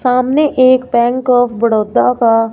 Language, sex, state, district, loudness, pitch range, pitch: Hindi, female, Punjab, Fazilka, -12 LUFS, 230-255 Hz, 245 Hz